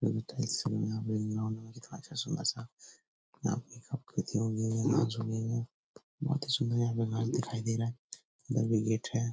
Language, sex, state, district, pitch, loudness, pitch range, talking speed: Hindi, male, Bihar, Jahanabad, 115 Hz, -34 LUFS, 110-125 Hz, 90 wpm